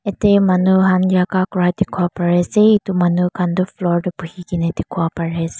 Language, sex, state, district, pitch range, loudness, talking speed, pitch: Nagamese, female, Mizoram, Aizawl, 175-190 Hz, -17 LUFS, 195 wpm, 180 Hz